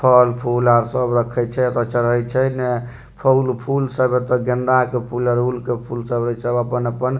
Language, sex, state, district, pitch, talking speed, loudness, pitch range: Maithili, male, Bihar, Supaul, 125 Hz, 190 wpm, -19 LUFS, 120-125 Hz